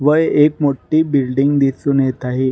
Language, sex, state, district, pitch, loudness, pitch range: Marathi, male, Maharashtra, Nagpur, 140 Hz, -15 LUFS, 130-150 Hz